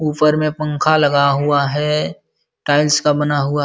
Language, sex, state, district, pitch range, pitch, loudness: Hindi, male, Uttar Pradesh, Jalaun, 145-150 Hz, 150 Hz, -16 LUFS